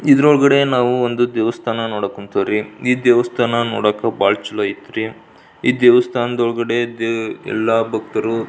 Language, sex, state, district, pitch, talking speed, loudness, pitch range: Kannada, male, Karnataka, Belgaum, 120 Hz, 115 wpm, -17 LUFS, 110-125 Hz